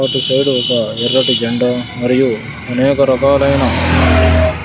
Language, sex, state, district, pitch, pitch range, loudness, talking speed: Telugu, male, Andhra Pradesh, Sri Satya Sai, 125 Hz, 110-130 Hz, -13 LUFS, 105 wpm